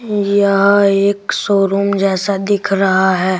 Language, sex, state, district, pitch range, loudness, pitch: Hindi, female, Delhi, New Delhi, 195-200 Hz, -14 LUFS, 200 Hz